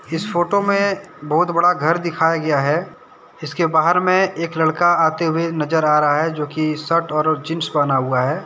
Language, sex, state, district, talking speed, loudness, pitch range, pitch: Hindi, male, Jharkhand, Deoghar, 190 wpm, -18 LUFS, 155-170 Hz, 160 Hz